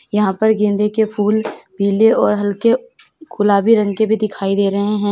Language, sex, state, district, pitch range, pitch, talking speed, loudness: Hindi, female, Uttar Pradesh, Lalitpur, 200-220 Hz, 210 Hz, 190 wpm, -16 LUFS